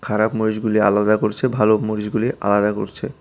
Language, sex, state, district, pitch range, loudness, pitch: Bengali, male, Tripura, West Tripura, 105-110 Hz, -19 LUFS, 110 Hz